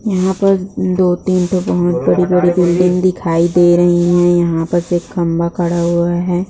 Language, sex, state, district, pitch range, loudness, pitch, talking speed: Hindi, female, Bihar, Bhagalpur, 175-180 Hz, -14 LUFS, 175 Hz, 175 wpm